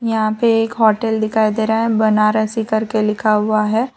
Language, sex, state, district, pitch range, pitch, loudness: Hindi, female, Gujarat, Valsad, 215-225 Hz, 220 Hz, -16 LUFS